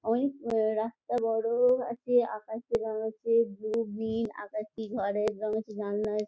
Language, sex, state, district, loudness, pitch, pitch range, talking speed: Bengali, female, West Bengal, Jhargram, -30 LUFS, 220 Hz, 215-230 Hz, 170 wpm